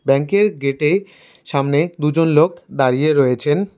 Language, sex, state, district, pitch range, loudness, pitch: Bengali, male, West Bengal, Cooch Behar, 140-175 Hz, -17 LUFS, 150 Hz